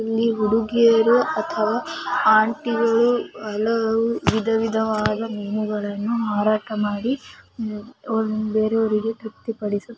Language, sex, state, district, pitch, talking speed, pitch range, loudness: Kannada, female, Karnataka, Mysore, 225 Hz, 65 wpm, 215-230 Hz, -21 LUFS